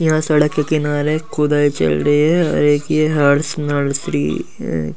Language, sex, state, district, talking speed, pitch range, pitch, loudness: Hindi, male, Delhi, New Delhi, 170 wpm, 140-155 Hz, 145 Hz, -16 LUFS